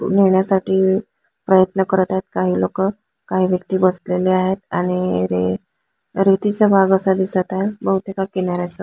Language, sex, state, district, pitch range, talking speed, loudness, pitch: Marathi, male, Maharashtra, Sindhudurg, 185-195 Hz, 135 wpm, -18 LUFS, 190 Hz